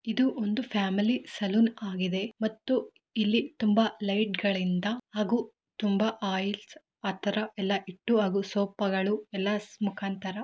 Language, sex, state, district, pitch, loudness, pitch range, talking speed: Kannada, female, Karnataka, Mysore, 210 Hz, -29 LUFS, 195-220 Hz, 120 wpm